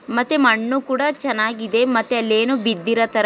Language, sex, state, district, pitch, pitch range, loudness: Kannada, female, Karnataka, Dharwad, 235 Hz, 225-260 Hz, -18 LUFS